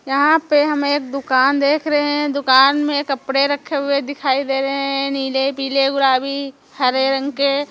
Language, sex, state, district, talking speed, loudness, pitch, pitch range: Hindi, female, Chhattisgarh, Raipur, 180 wpm, -17 LUFS, 275 Hz, 270-285 Hz